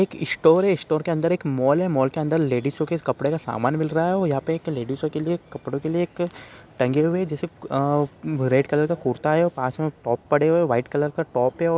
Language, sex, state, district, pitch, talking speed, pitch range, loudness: Hindi, male, Chhattisgarh, Rajnandgaon, 155 Hz, 285 wpm, 135-165 Hz, -23 LUFS